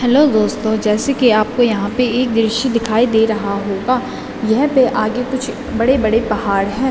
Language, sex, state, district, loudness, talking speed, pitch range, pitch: Hindi, female, Uttarakhand, Tehri Garhwal, -15 LUFS, 175 wpm, 215-255 Hz, 230 Hz